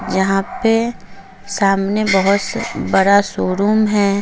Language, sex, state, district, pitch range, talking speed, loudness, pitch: Hindi, female, Uttar Pradesh, Lucknow, 195-210 Hz, 100 wpm, -16 LUFS, 200 Hz